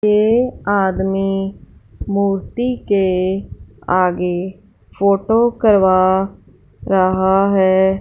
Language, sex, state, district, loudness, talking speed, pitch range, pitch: Hindi, female, Punjab, Fazilka, -16 LUFS, 65 wpm, 190-200 Hz, 195 Hz